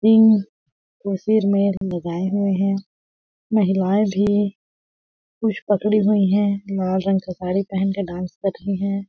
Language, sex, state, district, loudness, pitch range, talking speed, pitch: Hindi, female, Chhattisgarh, Balrampur, -20 LUFS, 190-205 Hz, 150 wpm, 195 Hz